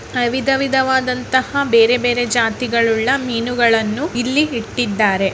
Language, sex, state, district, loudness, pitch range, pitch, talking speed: Kannada, female, Karnataka, Mysore, -16 LUFS, 230-260 Hz, 245 Hz, 90 wpm